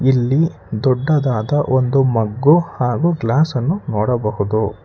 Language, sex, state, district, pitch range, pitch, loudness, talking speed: Kannada, male, Karnataka, Bangalore, 115-145 Hz, 130 Hz, -17 LUFS, 100 wpm